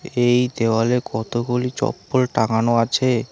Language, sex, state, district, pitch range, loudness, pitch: Bengali, male, West Bengal, Alipurduar, 115-125 Hz, -20 LUFS, 125 Hz